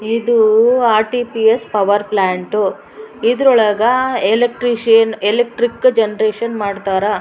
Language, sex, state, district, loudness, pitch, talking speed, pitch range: Kannada, female, Karnataka, Raichur, -14 LUFS, 225 Hz, 75 wpm, 210-240 Hz